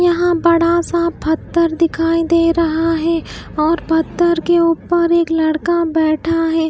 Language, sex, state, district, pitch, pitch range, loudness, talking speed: Hindi, female, Bihar, West Champaran, 335 Hz, 325-340 Hz, -15 LUFS, 145 wpm